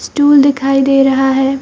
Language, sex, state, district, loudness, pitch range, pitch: Hindi, female, Bihar, Purnia, -11 LUFS, 270-280 Hz, 275 Hz